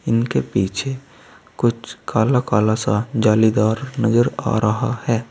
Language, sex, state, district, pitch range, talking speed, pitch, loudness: Hindi, male, Uttar Pradesh, Saharanpur, 110-120 Hz, 125 wpm, 115 Hz, -19 LUFS